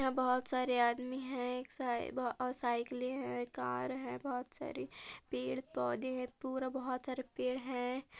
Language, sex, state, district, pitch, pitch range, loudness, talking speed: Hindi, female, Chhattisgarh, Balrampur, 250 Hz, 235-260 Hz, -39 LUFS, 155 wpm